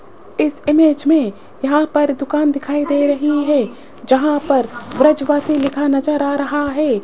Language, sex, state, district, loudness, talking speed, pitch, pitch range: Hindi, female, Rajasthan, Jaipur, -16 LUFS, 155 wpm, 290 Hz, 275-295 Hz